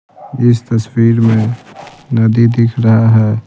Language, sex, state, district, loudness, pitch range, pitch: Hindi, male, Bihar, Patna, -12 LUFS, 110-120 Hz, 115 Hz